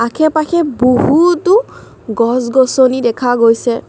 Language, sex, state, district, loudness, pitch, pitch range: Assamese, female, Assam, Kamrup Metropolitan, -12 LUFS, 255 Hz, 240-310 Hz